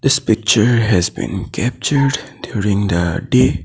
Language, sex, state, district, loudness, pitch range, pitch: English, male, Assam, Sonitpur, -16 LUFS, 100-135 Hz, 115 Hz